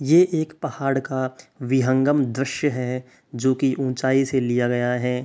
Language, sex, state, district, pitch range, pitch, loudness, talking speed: Hindi, male, Uttar Pradesh, Hamirpur, 125-140 Hz, 130 Hz, -22 LUFS, 150 wpm